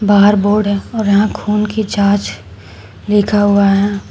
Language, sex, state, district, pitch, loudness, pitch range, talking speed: Hindi, female, Uttar Pradesh, Shamli, 205 Hz, -13 LUFS, 200-210 Hz, 160 wpm